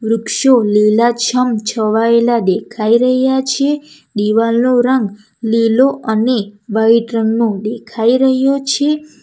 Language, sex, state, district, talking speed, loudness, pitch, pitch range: Gujarati, female, Gujarat, Valsad, 95 wpm, -14 LUFS, 230 Hz, 220-260 Hz